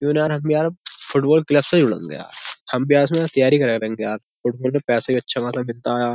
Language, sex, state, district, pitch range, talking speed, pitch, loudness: Hindi, male, Uttar Pradesh, Jyotiba Phule Nagar, 120-150 Hz, 245 wpm, 130 Hz, -20 LUFS